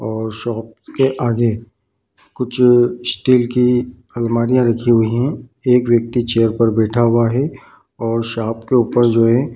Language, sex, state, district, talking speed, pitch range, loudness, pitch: Hindi, male, Bihar, Bhagalpur, 150 wpm, 115-125 Hz, -16 LUFS, 120 Hz